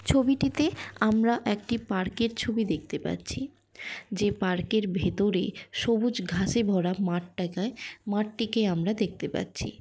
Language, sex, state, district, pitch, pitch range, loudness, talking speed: Bengali, female, West Bengal, Kolkata, 210 Hz, 190-230 Hz, -28 LUFS, 120 wpm